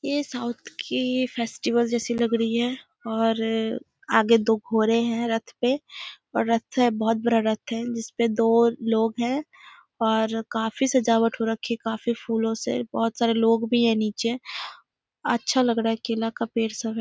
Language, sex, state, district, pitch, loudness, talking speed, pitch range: Hindi, female, Bihar, Muzaffarpur, 230 Hz, -24 LUFS, 180 wpm, 225-235 Hz